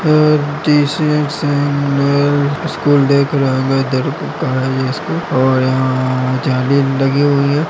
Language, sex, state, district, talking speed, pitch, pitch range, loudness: Hindi, male, Uttar Pradesh, Deoria, 115 wpm, 140 Hz, 130-145 Hz, -14 LUFS